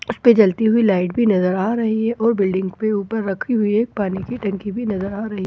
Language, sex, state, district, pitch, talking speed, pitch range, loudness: Hindi, female, Bihar, Katihar, 210 Hz, 250 wpm, 195-225 Hz, -19 LUFS